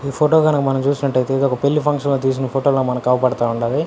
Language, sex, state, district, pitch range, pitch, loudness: Telugu, male, Andhra Pradesh, Anantapur, 130-140 Hz, 135 Hz, -17 LUFS